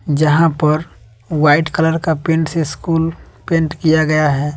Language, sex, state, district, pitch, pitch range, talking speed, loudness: Hindi, male, Bihar, West Champaran, 155 Hz, 150-165 Hz, 160 wpm, -15 LUFS